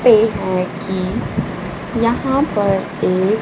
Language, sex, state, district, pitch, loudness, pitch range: Hindi, female, Bihar, Kaimur, 205 Hz, -18 LUFS, 190-230 Hz